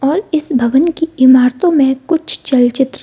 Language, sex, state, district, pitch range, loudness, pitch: Hindi, female, Bihar, Gaya, 260-325 Hz, -12 LUFS, 275 Hz